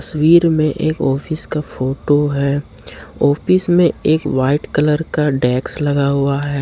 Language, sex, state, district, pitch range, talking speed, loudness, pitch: Hindi, male, Jharkhand, Ranchi, 140-155 Hz, 155 wpm, -16 LUFS, 145 Hz